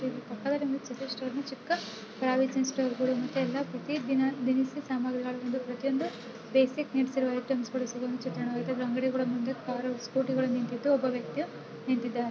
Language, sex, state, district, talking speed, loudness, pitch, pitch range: Kannada, female, Karnataka, Chamarajanagar, 145 wpm, -31 LUFS, 255 Hz, 250-265 Hz